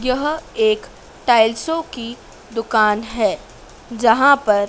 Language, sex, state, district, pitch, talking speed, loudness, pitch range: Hindi, female, Madhya Pradesh, Dhar, 240 Hz, 100 wpm, -18 LUFS, 225-295 Hz